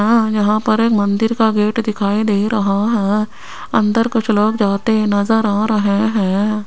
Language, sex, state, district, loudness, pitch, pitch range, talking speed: Hindi, female, Rajasthan, Jaipur, -16 LUFS, 215 Hz, 205-220 Hz, 170 wpm